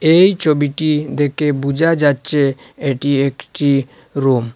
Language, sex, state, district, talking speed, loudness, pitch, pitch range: Bengali, male, Assam, Hailakandi, 120 wpm, -16 LUFS, 145 Hz, 135-150 Hz